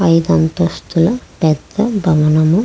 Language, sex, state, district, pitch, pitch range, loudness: Telugu, female, Andhra Pradesh, Krishna, 165 Hz, 160-195 Hz, -14 LUFS